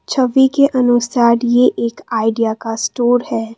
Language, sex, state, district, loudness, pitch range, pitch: Hindi, female, Assam, Kamrup Metropolitan, -15 LUFS, 230-255 Hz, 240 Hz